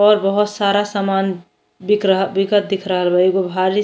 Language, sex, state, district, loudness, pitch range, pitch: Bhojpuri, female, Uttar Pradesh, Ghazipur, -17 LUFS, 190-205 Hz, 195 Hz